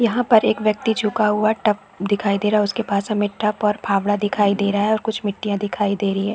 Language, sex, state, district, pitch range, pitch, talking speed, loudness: Hindi, female, Chhattisgarh, Bilaspur, 200-215 Hz, 210 Hz, 255 wpm, -20 LUFS